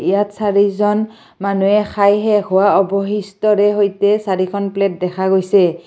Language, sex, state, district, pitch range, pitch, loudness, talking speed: Assamese, female, Assam, Kamrup Metropolitan, 195-210 Hz, 200 Hz, -15 LUFS, 125 wpm